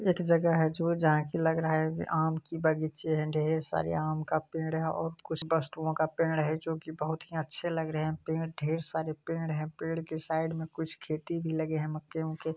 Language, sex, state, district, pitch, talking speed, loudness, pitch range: Hindi, male, Bihar, Kishanganj, 160 Hz, 240 wpm, -32 LUFS, 155-160 Hz